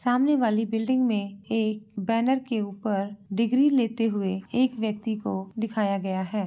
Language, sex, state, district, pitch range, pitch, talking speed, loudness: Hindi, female, Bihar, Jahanabad, 200-240 Hz, 220 Hz, 160 wpm, -26 LUFS